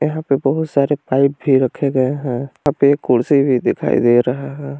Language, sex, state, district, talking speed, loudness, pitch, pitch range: Hindi, male, Jharkhand, Palamu, 225 wpm, -16 LUFS, 140 Hz, 130-140 Hz